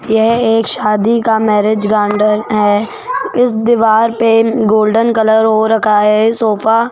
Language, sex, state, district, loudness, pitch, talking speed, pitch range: Hindi, female, Rajasthan, Jaipur, -12 LUFS, 220 Hz, 145 wpm, 215-230 Hz